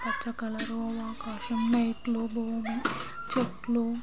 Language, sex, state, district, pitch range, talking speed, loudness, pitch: Telugu, female, Andhra Pradesh, Srikakulam, 230-240 Hz, 105 wpm, -31 LUFS, 230 Hz